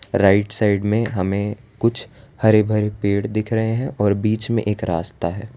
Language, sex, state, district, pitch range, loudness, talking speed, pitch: Hindi, male, Gujarat, Valsad, 100-110 Hz, -20 LUFS, 185 wpm, 105 Hz